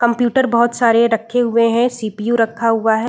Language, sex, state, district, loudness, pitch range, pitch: Hindi, female, Bihar, Saran, -15 LUFS, 225-240 Hz, 230 Hz